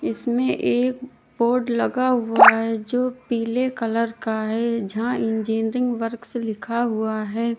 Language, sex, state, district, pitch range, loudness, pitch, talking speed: Hindi, female, Uttar Pradesh, Lalitpur, 225-245 Hz, -22 LUFS, 235 Hz, 135 wpm